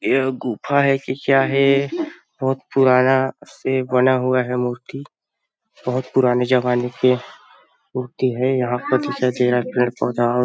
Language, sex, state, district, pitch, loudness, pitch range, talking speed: Hindi, male, Chhattisgarh, Balrampur, 130 Hz, -19 LUFS, 125-135 Hz, 160 wpm